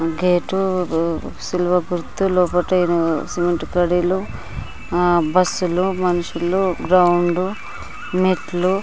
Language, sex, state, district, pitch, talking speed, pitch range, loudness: Telugu, female, Andhra Pradesh, Anantapur, 180 Hz, 55 wpm, 175-185 Hz, -19 LUFS